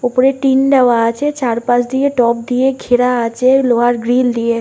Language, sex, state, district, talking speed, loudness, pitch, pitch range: Bengali, female, West Bengal, North 24 Parganas, 170 wpm, -13 LUFS, 245 Hz, 235-265 Hz